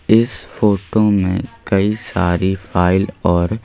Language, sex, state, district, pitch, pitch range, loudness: Hindi, male, Madhya Pradesh, Bhopal, 95 Hz, 95-105 Hz, -17 LUFS